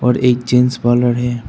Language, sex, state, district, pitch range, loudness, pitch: Hindi, male, Arunachal Pradesh, Papum Pare, 120-125 Hz, -14 LUFS, 125 Hz